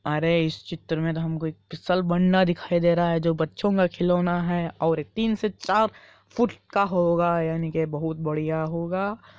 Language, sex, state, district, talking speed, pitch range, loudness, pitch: Hindi, female, Andhra Pradesh, Anantapur, 185 wpm, 160-180 Hz, -24 LUFS, 170 Hz